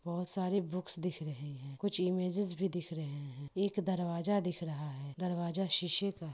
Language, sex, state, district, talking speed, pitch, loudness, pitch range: Hindi, female, Bihar, Lakhisarai, 200 wpm, 175 Hz, -35 LUFS, 155-190 Hz